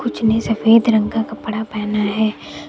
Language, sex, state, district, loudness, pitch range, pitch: Hindi, female, Uttar Pradesh, Lucknow, -17 LUFS, 215-225 Hz, 220 Hz